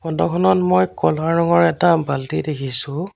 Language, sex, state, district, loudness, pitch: Assamese, male, Assam, Sonitpur, -18 LUFS, 145 Hz